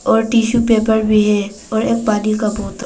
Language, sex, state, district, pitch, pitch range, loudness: Hindi, female, Arunachal Pradesh, Papum Pare, 220 Hz, 210-230 Hz, -15 LUFS